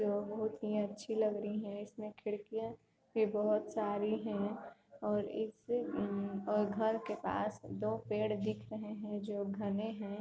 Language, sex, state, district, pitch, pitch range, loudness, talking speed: Hindi, female, Uttar Pradesh, Varanasi, 210 Hz, 205-215 Hz, -38 LUFS, 155 wpm